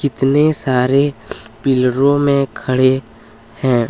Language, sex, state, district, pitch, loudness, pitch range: Hindi, male, Chhattisgarh, Kabirdham, 130 Hz, -15 LUFS, 125-140 Hz